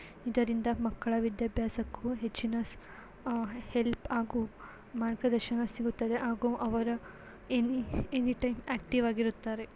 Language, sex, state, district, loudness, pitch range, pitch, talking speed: Kannada, female, Karnataka, Belgaum, -33 LUFS, 230-245 Hz, 235 Hz, 100 wpm